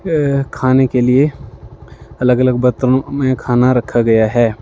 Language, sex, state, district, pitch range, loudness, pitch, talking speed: Hindi, male, Himachal Pradesh, Shimla, 125-135 Hz, -14 LUFS, 130 Hz, 145 wpm